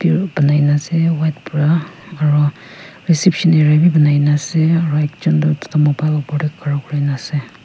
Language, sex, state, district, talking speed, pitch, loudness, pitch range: Nagamese, female, Nagaland, Kohima, 155 wpm, 150 Hz, -15 LUFS, 145-165 Hz